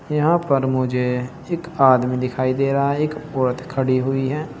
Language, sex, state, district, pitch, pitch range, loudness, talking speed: Hindi, male, Uttar Pradesh, Saharanpur, 135 Hz, 130-150 Hz, -20 LUFS, 185 wpm